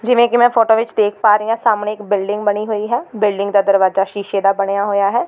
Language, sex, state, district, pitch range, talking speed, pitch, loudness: Punjabi, female, Delhi, New Delhi, 200-225 Hz, 260 wpm, 210 Hz, -15 LUFS